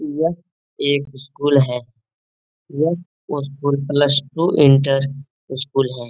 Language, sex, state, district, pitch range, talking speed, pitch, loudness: Hindi, male, Bihar, Jamui, 130-145 Hz, 110 wpm, 140 Hz, -19 LUFS